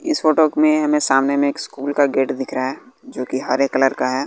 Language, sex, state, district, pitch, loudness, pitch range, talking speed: Hindi, male, Bihar, West Champaran, 140 Hz, -18 LUFS, 135-155 Hz, 265 wpm